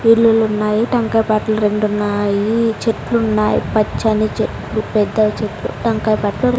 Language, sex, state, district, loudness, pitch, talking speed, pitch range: Telugu, female, Andhra Pradesh, Sri Satya Sai, -16 LUFS, 215 Hz, 100 wpm, 210-225 Hz